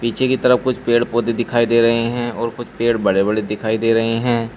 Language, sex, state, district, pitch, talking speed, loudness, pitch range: Hindi, male, Uttar Pradesh, Saharanpur, 115 Hz, 250 wpm, -17 LUFS, 115-120 Hz